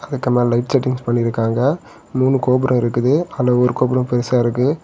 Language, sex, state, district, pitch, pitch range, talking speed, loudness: Tamil, male, Tamil Nadu, Kanyakumari, 125 Hz, 120-130 Hz, 160 wpm, -17 LUFS